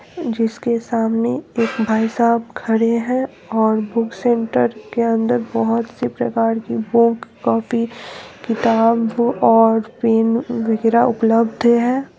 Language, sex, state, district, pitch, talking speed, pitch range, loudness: Hindi, female, Bihar, East Champaran, 230 Hz, 120 wpm, 225-235 Hz, -18 LUFS